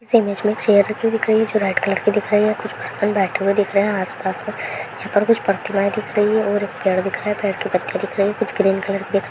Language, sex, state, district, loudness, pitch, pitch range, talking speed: Hindi, female, Bihar, Saharsa, -19 LUFS, 205 Hz, 195-215 Hz, 270 wpm